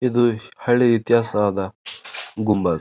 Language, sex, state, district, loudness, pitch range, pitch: Kannada, male, Karnataka, Bijapur, -20 LUFS, 105-120 Hz, 115 Hz